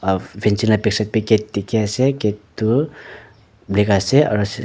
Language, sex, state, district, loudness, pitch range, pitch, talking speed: Nagamese, male, Nagaland, Dimapur, -18 LUFS, 105-110 Hz, 105 Hz, 165 wpm